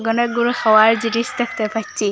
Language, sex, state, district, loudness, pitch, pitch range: Bengali, female, Assam, Hailakandi, -17 LUFS, 225 Hz, 220-240 Hz